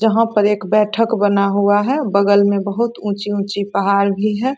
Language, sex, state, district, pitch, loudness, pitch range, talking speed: Hindi, female, Bihar, Samastipur, 205 Hz, -16 LUFS, 200-220 Hz, 185 wpm